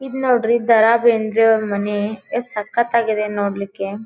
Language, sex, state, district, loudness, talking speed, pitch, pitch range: Kannada, female, Karnataka, Dharwad, -18 LUFS, 160 wpm, 220 Hz, 205-235 Hz